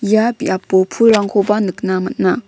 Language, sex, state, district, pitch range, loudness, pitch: Garo, female, Meghalaya, West Garo Hills, 190-220 Hz, -15 LUFS, 205 Hz